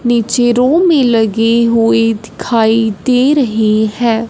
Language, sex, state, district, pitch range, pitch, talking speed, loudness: Hindi, female, Punjab, Fazilka, 225-245 Hz, 230 Hz, 125 wpm, -12 LUFS